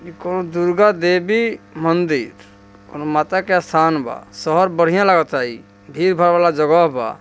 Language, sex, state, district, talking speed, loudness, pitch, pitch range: Bhojpuri, male, Bihar, East Champaran, 150 wpm, -17 LUFS, 170 Hz, 150-180 Hz